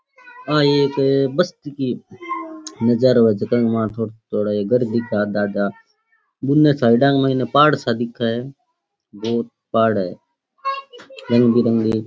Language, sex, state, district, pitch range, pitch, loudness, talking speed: Rajasthani, male, Rajasthan, Churu, 115-180 Hz, 125 Hz, -19 LUFS, 140 wpm